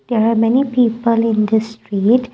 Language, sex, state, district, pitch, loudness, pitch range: English, female, Assam, Kamrup Metropolitan, 230 Hz, -16 LUFS, 220-240 Hz